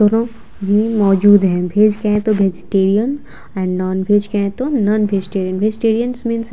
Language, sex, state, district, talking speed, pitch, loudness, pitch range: Hindi, female, Bihar, Vaishali, 155 wpm, 205 Hz, -16 LUFS, 195-225 Hz